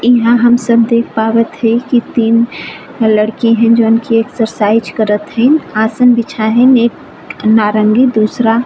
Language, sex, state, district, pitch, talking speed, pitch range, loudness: Bhojpuri, female, Uttar Pradesh, Ghazipur, 230 Hz, 150 wpm, 220-240 Hz, -11 LUFS